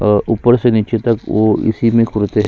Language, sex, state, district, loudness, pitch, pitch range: Hindi, female, Chhattisgarh, Sukma, -14 LUFS, 110 Hz, 105-115 Hz